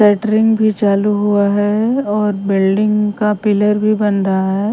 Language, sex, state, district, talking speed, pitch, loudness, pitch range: Hindi, female, Himachal Pradesh, Shimla, 165 wpm, 210 Hz, -14 LUFS, 205-215 Hz